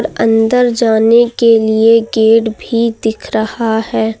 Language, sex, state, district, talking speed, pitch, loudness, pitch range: Hindi, female, Uttar Pradesh, Lucknow, 130 wpm, 225 Hz, -12 LUFS, 220-230 Hz